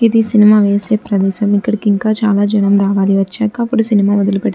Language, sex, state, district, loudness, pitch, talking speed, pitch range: Telugu, female, Andhra Pradesh, Chittoor, -13 LUFS, 205 Hz, 200 wpm, 200-215 Hz